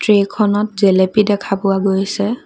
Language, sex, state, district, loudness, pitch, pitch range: Assamese, female, Assam, Kamrup Metropolitan, -15 LUFS, 200 Hz, 195-210 Hz